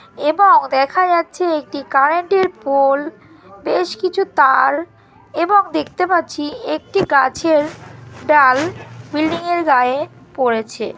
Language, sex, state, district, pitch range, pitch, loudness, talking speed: Bengali, female, West Bengal, North 24 Parganas, 275-350 Hz, 305 Hz, -16 LUFS, 115 wpm